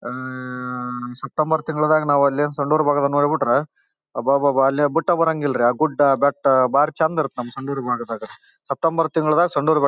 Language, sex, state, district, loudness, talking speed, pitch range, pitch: Kannada, male, Karnataka, Bellary, -20 LUFS, 175 wpm, 130-155 Hz, 140 Hz